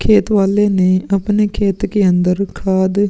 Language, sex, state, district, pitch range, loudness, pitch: Hindi, male, Uttar Pradesh, Muzaffarnagar, 190-205 Hz, -15 LUFS, 200 Hz